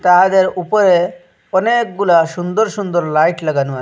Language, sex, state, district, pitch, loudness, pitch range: Bengali, male, Assam, Hailakandi, 180 Hz, -14 LUFS, 170-195 Hz